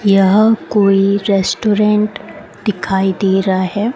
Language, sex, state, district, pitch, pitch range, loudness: Hindi, female, Rajasthan, Bikaner, 200 Hz, 195-210 Hz, -14 LUFS